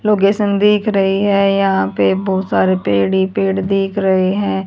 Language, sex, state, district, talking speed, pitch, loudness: Hindi, female, Haryana, Charkhi Dadri, 180 wpm, 195 Hz, -15 LUFS